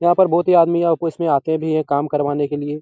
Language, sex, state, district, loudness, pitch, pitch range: Hindi, male, Bihar, Araria, -18 LUFS, 160 Hz, 145-170 Hz